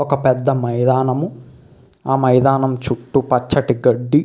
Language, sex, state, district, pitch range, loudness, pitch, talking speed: Telugu, male, Andhra Pradesh, Visakhapatnam, 125-135 Hz, -17 LUFS, 130 Hz, 115 wpm